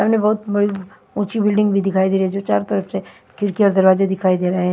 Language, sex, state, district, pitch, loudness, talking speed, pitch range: Hindi, female, Himachal Pradesh, Shimla, 195 Hz, -18 LUFS, 265 wpm, 190-205 Hz